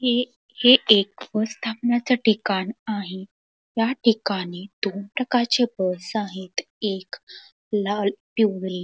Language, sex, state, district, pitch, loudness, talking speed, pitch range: Marathi, female, Karnataka, Belgaum, 215 Hz, -23 LUFS, 95 wpm, 195-240 Hz